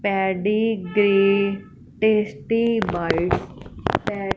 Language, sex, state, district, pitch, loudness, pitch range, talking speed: Hindi, female, Punjab, Fazilka, 205 Hz, -21 LUFS, 195-215 Hz, 55 wpm